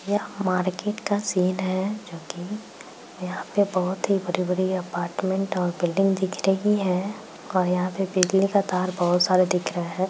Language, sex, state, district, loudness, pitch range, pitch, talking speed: Hindi, female, Bihar, Bhagalpur, -24 LUFS, 180-195 Hz, 185 Hz, 165 wpm